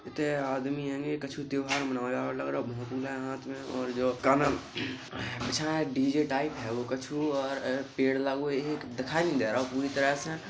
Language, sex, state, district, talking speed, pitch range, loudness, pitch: Bundeli, male, Uttar Pradesh, Hamirpur, 175 wpm, 130-145 Hz, -31 LUFS, 135 Hz